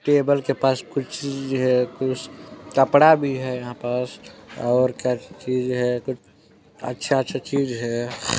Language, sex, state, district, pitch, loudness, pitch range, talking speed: Hindi, male, Chhattisgarh, Balrampur, 130 Hz, -22 LUFS, 125-140 Hz, 135 wpm